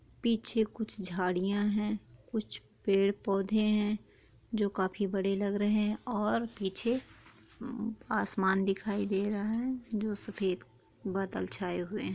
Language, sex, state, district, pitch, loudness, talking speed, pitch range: Hindi, female, Chhattisgarh, Korba, 205 Hz, -32 LUFS, 130 wpm, 195-220 Hz